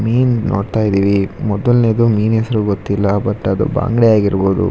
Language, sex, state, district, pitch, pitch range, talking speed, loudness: Kannada, male, Karnataka, Shimoga, 110 Hz, 100-115 Hz, 100 wpm, -15 LUFS